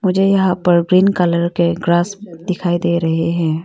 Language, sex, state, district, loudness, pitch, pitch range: Hindi, female, Arunachal Pradesh, Longding, -15 LUFS, 175 Hz, 170-185 Hz